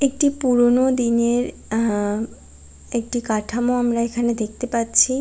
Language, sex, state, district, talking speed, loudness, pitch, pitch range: Bengali, female, West Bengal, Kolkata, 105 wpm, -20 LUFS, 235 Hz, 220-245 Hz